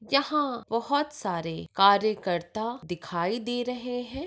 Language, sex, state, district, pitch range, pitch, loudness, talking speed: Hindi, female, Maharashtra, Pune, 195-255 Hz, 235 Hz, -28 LUFS, 110 wpm